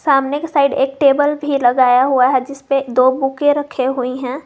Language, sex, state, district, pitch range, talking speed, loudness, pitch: Hindi, female, Jharkhand, Garhwa, 255-285 Hz, 200 wpm, -15 LUFS, 270 Hz